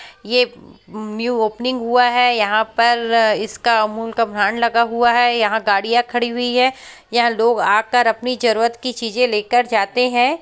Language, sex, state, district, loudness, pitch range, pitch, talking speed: Hindi, female, Chhattisgarh, Bastar, -17 LUFS, 220-245 Hz, 235 Hz, 165 wpm